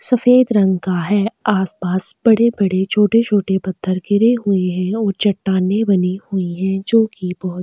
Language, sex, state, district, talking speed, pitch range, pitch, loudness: Hindi, female, Goa, North and South Goa, 155 wpm, 185-220 Hz, 195 Hz, -16 LUFS